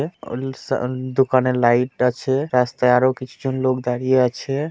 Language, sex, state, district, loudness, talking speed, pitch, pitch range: Bengali, male, West Bengal, Purulia, -20 LUFS, 140 wpm, 130 Hz, 125-135 Hz